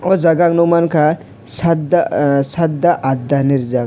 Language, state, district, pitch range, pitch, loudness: Kokborok, Tripura, West Tripura, 135-170 Hz, 155 Hz, -14 LUFS